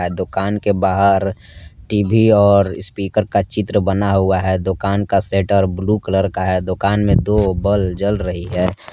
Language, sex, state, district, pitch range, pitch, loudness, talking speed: Hindi, male, Jharkhand, Palamu, 95-100 Hz, 100 Hz, -17 LUFS, 170 wpm